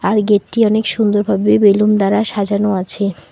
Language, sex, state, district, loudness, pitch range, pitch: Bengali, female, West Bengal, Alipurduar, -14 LUFS, 200-210 Hz, 205 Hz